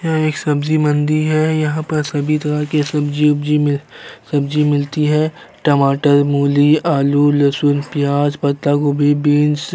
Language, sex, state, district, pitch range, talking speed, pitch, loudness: Hindi, male, Uttar Pradesh, Jyotiba Phule Nagar, 145-150 Hz, 155 wpm, 145 Hz, -16 LUFS